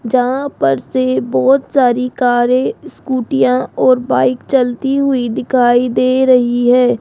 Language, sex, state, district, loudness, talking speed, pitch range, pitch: Hindi, female, Rajasthan, Jaipur, -13 LUFS, 130 wpm, 240-260 Hz, 250 Hz